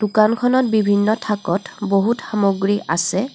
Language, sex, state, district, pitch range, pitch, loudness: Assamese, female, Assam, Kamrup Metropolitan, 200-220 Hz, 210 Hz, -18 LUFS